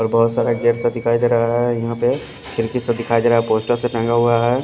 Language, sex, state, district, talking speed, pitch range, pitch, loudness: Hindi, male, Punjab, Pathankot, 270 wpm, 115-120 Hz, 120 Hz, -18 LUFS